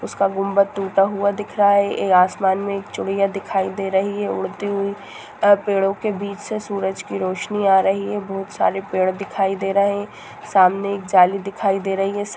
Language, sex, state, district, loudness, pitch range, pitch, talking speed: Hindi, female, Jharkhand, Jamtara, -20 LUFS, 195-200 Hz, 195 Hz, 205 wpm